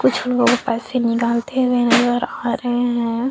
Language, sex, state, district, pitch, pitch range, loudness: Hindi, female, Chhattisgarh, Sukma, 245 Hz, 235-250 Hz, -18 LUFS